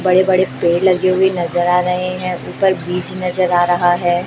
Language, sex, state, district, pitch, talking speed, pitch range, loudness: Hindi, female, Chhattisgarh, Raipur, 180 Hz, 210 wpm, 175-185 Hz, -15 LUFS